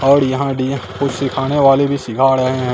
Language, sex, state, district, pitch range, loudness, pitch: Hindi, male, Bihar, Katihar, 130-140 Hz, -15 LUFS, 135 Hz